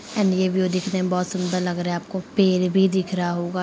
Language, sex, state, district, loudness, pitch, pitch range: Hindi, female, Uttar Pradesh, Muzaffarnagar, -22 LUFS, 185 Hz, 180-190 Hz